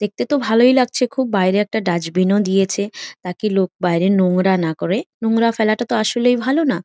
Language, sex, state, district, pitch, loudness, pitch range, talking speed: Bengali, female, West Bengal, Jhargram, 210 Hz, -17 LUFS, 185-240 Hz, 195 wpm